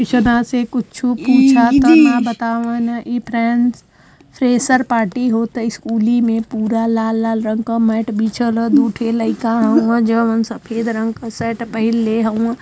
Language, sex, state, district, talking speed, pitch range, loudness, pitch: Bhojpuri, female, Uttar Pradesh, Varanasi, 145 wpm, 225-240 Hz, -16 LUFS, 230 Hz